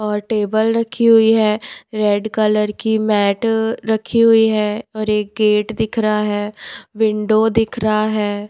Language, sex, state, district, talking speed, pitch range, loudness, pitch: Hindi, female, Himachal Pradesh, Shimla, 155 wpm, 210-225 Hz, -16 LUFS, 215 Hz